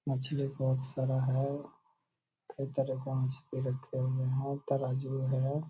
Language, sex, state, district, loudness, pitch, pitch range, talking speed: Hindi, male, Bihar, Purnia, -34 LUFS, 135 Hz, 130-135 Hz, 160 wpm